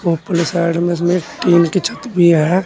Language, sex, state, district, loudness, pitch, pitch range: Hindi, male, Uttar Pradesh, Saharanpur, -15 LUFS, 175 Hz, 170-180 Hz